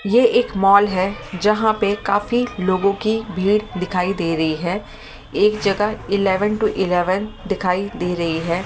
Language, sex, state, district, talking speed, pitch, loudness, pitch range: Hindi, female, Delhi, New Delhi, 160 wpm, 200 Hz, -19 LUFS, 185-210 Hz